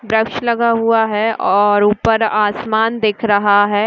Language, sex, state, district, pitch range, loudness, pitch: Hindi, female, Chhattisgarh, Sukma, 205-225 Hz, -15 LUFS, 220 Hz